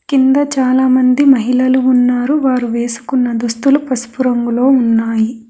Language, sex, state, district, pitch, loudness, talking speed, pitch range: Telugu, female, Telangana, Hyderabad, 255 Hz, -13 LUFS, 110 wpm, 240-265 Hz